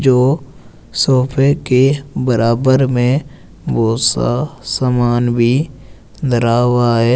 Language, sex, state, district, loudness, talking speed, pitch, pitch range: Hindi, male, Uttar Pradesh, Saharanpur, -15 LUFS, 100 wpm, 125 Hz, 120-135 Hz